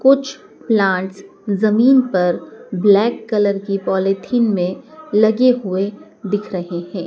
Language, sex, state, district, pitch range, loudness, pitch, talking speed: Hindi, female, Madhya Pradesh, Dhar, 190-235 Hz, -17 LUFS, 205 Hz, 120 wpm